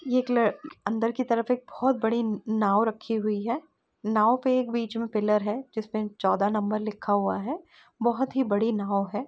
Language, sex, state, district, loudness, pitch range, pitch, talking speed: Hindi, female, Uttar Pradesh, Etah, -27 LUFS, 210-250 Hz, 225 Hz, 180 wpm